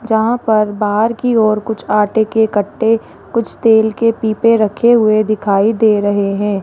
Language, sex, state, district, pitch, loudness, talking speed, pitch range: Hindi, female, Rajasthan, Jaipur, 220 Hz, -14 LUFS, 170 wpm, 210-230 Hz